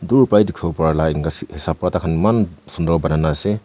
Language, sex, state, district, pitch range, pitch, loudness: Nagamese, male, Nagaland, Kohima, 80-100 Hz, 80 Hz, -18 LUFS